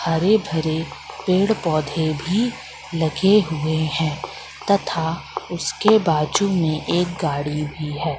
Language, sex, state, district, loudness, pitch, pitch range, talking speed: Hindi, female, Madhya Pradesh, Katni, -21 LUFS, 160 Hz, 155-190 Hz, 115 wpm